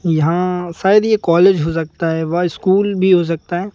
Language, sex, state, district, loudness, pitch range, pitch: Hindi, male, Madhya Pradesh, Bhopal, -15 LUFS, 165-190 Hz, 175 Hz